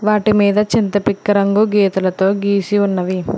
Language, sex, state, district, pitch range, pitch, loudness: Telugu, female, Telangana, Hyderabad, 195-210 Hz, 200 Hz, -15 LUFS